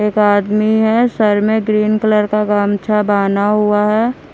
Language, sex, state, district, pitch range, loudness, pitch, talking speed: Hindi, female, Bihar, Kaimur, 205-215 Hz, -14 LUFS, 210 Hz, 165 wpm